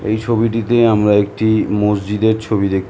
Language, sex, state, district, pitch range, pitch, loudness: Bengali, male, West Bengal, North 24 Parganas, 105-110 Hz, 110 Hz, -15 LUFS